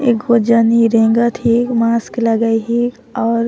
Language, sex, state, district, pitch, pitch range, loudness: Sadri, female, Chhattisgarh, Jashpur, 230 Hz, 230-235 Hz, -14 LUFS